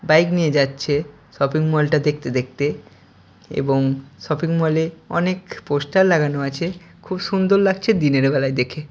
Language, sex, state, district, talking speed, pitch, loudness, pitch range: Bengali, male, West Bengal, Purulia, 150 wpm, 150 Hz, -20 LUFS, 135-170 Hz